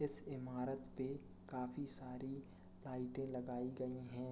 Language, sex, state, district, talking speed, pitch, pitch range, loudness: Hindi, male, Uttar Pradesh, Jalaun, 125 wpm, 130 Hz, 125-135 Hz, -45 LUFS